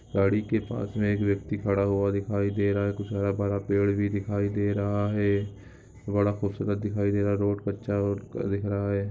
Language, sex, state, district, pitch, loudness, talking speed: Hindi, male, Bihar, Darbhanga, 100 Hz, -27 LUFS, 215 wpm